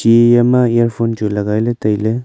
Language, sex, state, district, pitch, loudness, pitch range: Wancho, male, Arunachal Pradesh, Longding, 115 Hz, -14 LUFS, 110-120 Hz